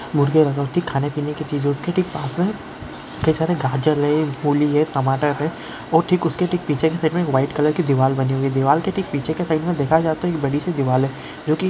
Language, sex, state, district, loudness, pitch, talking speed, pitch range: Hindi, male, West Bengal, Dakshin Dinajpur, -20 LUFS, 150 Hz, 220 wpm, 140-165 Hz